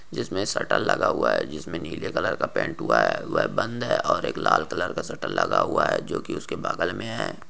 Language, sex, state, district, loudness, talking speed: Hindi, male, Jharkhand, Jamtara, -25 LUFS, 250 wpm